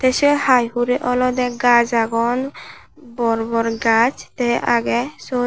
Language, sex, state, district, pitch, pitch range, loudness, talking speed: Chakma, male, Tripura, Unakoti, 245 Hz, 235-255 Hz, -18 LUFS, 145 wpm